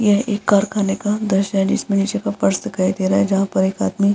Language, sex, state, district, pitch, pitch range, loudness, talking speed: Hindi, female, Bihar, Vaishali, 195 Hz, 190-205 Hz, -18 LUFS, 275 wpm